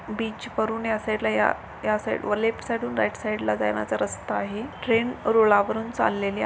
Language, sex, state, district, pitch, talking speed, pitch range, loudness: Marathi, female, Maharashtra, Sindhudurg, 215 Hz, 165 wpm, 200-225 Hz, -25 LUFS